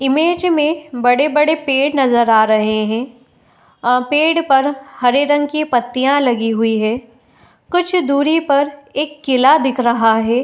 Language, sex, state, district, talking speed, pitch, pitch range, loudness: Hindi, female, Uttar Pradesh, Etah, 160 wpm, 270 Hz, 240-295 Hz, -15 LUFS